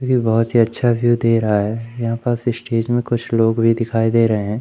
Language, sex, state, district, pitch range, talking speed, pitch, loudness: Hindi, male, Madhya Pradesh, Umaria, 115-120 Hz, 245 wpm, 115 Hz, -17 LUFS